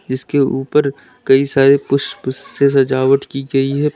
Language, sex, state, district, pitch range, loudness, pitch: Hindi, male, Uttar Pradesh, Lalitpur, 135-140 Hz, -15 LUFS, 135 Hz